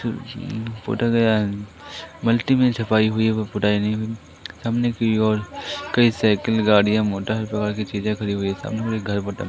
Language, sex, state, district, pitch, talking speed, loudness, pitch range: Hindi, male, Madhya Pradesh, Katni, 110 Hz, 100 wpm, -21 LUFS, 105-115 Hz